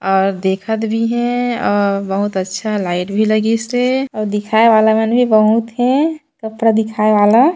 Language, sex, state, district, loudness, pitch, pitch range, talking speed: Chhattisgarhi, female, Chhattisgarh, Sarguja, -15 LUFS, 220 Hz, 205-240 Hz, 160 wpm